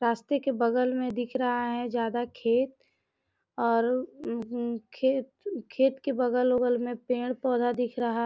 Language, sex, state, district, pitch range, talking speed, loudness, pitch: Hindi, female, Bihar, Gopalganj, 235-255 Hz, 140 wpm, -28 LUFS, 245 Hz